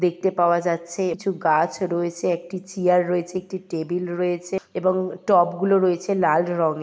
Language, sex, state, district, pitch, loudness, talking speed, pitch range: Bengali, female, West Bengal, Kolkata, 180 Hz, -22 LUFS, 150 wpm, 170-185 Hz